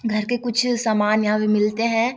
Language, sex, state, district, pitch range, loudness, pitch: Maithili, female, Bihar, Samastipur, 215-240 Hz, -20 LUFS, 225 Hz